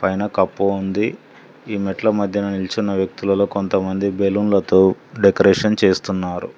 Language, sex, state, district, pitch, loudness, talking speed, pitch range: Telugu, male, Telangana, Mahabubabad, 100 Hz, -18 LUFS, 110 wpm, 95-100 Hz